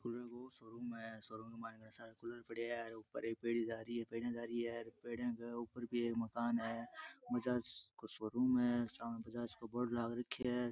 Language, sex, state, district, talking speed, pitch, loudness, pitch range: Rajasthani, male, Rajasthan, Churu, 215 wpm, 115 Hz, -43 LUFS, 115-120 Hz